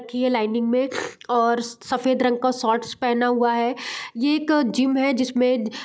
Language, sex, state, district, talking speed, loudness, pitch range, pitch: Hindi, female, Bihar, Gopalganj, 185 wpm, -22 LUFS, 235-260 Hz, 250 Hz